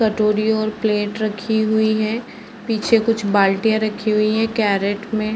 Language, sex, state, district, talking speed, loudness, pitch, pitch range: Hindi, female, Uttar Pradesh, Varanasi, 155 wpm, -19 LUFS, 215 Hz, 210-220 Hz